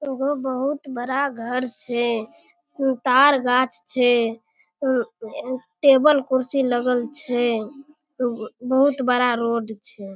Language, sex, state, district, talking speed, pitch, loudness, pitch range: Maithili, female, Bihar, Darbhanga, 100 wpm, 255 Hz, -21 LUFS, 240-275 Hz